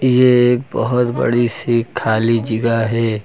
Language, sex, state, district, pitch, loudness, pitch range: Hindi, male, Uttar Pradesh, Lucknow, 120 Hz, -16 LUFS, 115-125 Hz